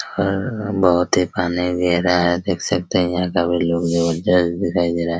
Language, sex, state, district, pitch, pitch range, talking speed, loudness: Hindi, male, Bihar, Araria, 90 Hz, 85-90 Hz, 205 wpm, -19 LUFS